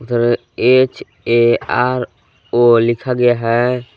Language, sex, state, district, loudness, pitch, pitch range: Hindi, male, Jharkhand, Palamu, -15 LUFS, 120 Hz, 120-125 Hz